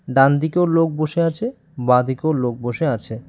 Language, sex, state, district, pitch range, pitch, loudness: Bengali, male, West Bengal, Cooch Behar, 125-165 Hz, 155 Hz, -19 LUFS